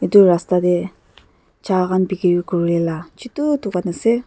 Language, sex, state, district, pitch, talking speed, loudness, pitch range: Nagamese, female, Nagaland, Dimapur, 180 Hz, 140 wpm, -18 LUFS, 170-195 Hz